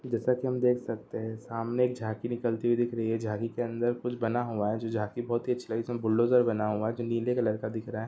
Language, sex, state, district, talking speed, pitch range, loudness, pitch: Hindi, male, Bihar, Saran, 290 wpm, 110-120 Hz, -30 LUFS, 115 Hz